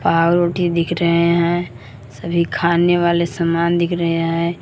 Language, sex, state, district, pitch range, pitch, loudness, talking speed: Hindi, male, Jharkhand, Palamu, 165-170 Hz, 170 Hz, -17 LUFS, 145 wpm